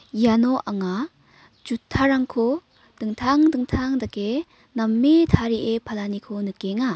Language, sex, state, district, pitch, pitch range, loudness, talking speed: Garo, female, Meghalaya, North Garo Hills, 235 Hz, 220-265 Hz, -22 LUFS, 85 wpm